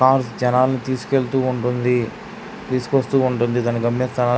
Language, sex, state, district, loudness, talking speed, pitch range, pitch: Telugu, male, Andhra Pradesh, Krishna, -20 LUFS, 110 wpm, 120-130 Hz, 125 Hz